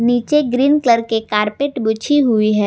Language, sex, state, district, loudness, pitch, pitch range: Hindi, female, Jharkhand, Garhwa, -16 LUFS, 235 Hz, 220-280 Hz